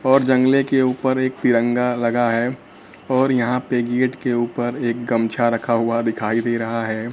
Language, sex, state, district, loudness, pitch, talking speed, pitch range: Hindi, male, Bihar, Kaimur, -19 LUFS, 120 Hz, 185 wpm, 115-130 Hz